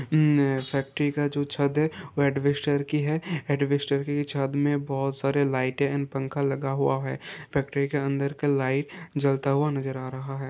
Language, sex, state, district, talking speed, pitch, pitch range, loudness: Hindi, male, Uttarakhand, Uttarkashi, 190 wpm, 140 Hz, 135-145 Hz, -26 LUFS